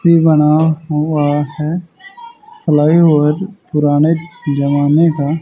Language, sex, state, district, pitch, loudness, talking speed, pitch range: Hindi, male, Haryana, Charkhi Dadri, 155 Hz, -13 LUFS, 90 wpm, 150-170 Hz